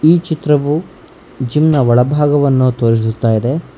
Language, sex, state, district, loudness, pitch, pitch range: Kannada, male, Karnataka, Bangalore, -13 LUFS, 140 Hz, 120-150 Hz